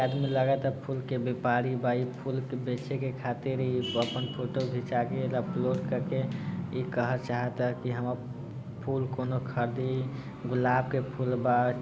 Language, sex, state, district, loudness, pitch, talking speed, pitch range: Bhojpuri, male, Bihar, Sitamarhi, -31 LUFS, 130 Hz, 155 wpm, 125-130 Hz